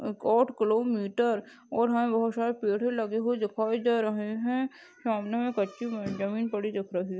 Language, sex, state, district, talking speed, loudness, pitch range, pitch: Hindi, female, Chhattisgarh, Balrampur, 185 wpm, -29 LUFS, 210-240 Hz, 225 Hz